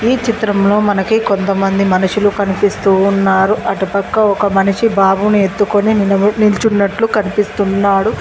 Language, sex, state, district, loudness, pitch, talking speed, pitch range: Telugu, female, Telangana, Mahabubabad, -13 LUFS, 200 Hz, 110 wpm, 195-210 Hz